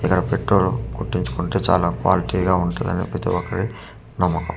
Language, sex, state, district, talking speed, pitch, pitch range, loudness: Telugu, male, Andhra Pradesh, Manyam, 160 wpm, 90 Hz, 90-110 Hz, -21 LUFS